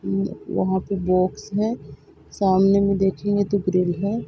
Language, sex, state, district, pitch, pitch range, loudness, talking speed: Hindi, female, Chhattisgarh, Bilaspur, 195 Hz, 185-200 Hz, -21 LUFS, 155 wpm